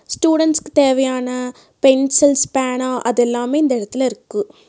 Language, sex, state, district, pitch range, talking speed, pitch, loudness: Tamil, female, Tamil Nadu, Nilgiris, 250-290 Hz, 115 wpm, 265 Hz, -16 LUFS